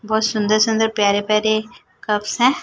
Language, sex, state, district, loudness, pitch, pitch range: Hindi, female, Chhattisgarh, Raipur, -18 LUFS, 215 Hz, 210-220 Hz